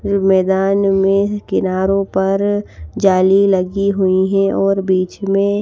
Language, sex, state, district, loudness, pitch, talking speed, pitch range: Hindi, female, Himachal Pradesh, Shimla, -15 LUFS, 195 Hz, 130 wpm, 190-200 Hz